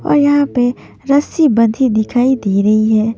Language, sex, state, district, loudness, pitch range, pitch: Hindi, female, Maharashtra, Mumbai Suburban, -13 LUFS, 220-280 Hz, 245 Hz